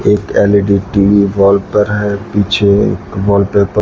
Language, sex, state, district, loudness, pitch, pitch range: Hindi, male, Rajasthan, Bikaner, -12 LUFS, 100 Hz, 100-105 Hz